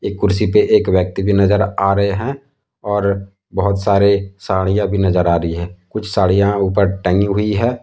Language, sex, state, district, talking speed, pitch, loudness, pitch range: Hindi, male, Jharkhand, Deoghar, 185 wpm, 100 Hz, -16 LUFS, 95-105 Hz